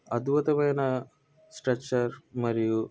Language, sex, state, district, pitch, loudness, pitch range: Telugu, male, Andhra Pradesh, Guntur, 130 Hz, -28 LUFS, 120-145 Hz